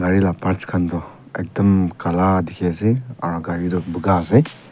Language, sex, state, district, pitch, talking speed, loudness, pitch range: Nagamese, male, Nagaland, Kohima, 90 Hz, 180 wpm, -20 LUFS, 85-95 Hz